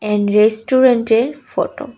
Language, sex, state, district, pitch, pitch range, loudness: Bengali, female, Tripura, West Tripura, 230 Hz, 215-260 Hz, -15 LUFS